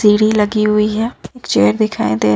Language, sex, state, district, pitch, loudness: Hindi, female, Jharkhand, Ranchi, 210 Hz, -15 LUFS